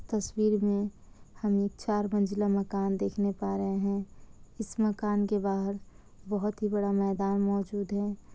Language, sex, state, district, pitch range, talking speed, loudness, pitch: Hindi, female, Bihar, Kishanganj, 200-210 Hz, 150 wpm, -30 LUFS, 200 Hz